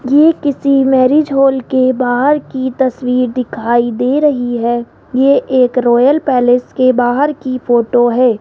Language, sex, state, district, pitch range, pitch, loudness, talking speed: Hindi, female, Rajasthan, Jaipur, 245-275 Hz, 255 Hz, -12 LUFS, 150 wpm